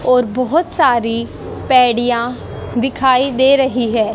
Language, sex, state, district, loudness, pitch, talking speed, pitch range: Hindi, female, Haryana, Jhajjar, -14 LUFS, 250 Hz, 115 wpm, 235-260 Hz